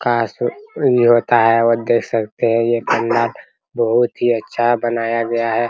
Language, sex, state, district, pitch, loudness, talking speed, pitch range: Hindi, male, Bihar, Araria, 115 Hz, -17 LUFS, 145 wpm, 115-120 Hz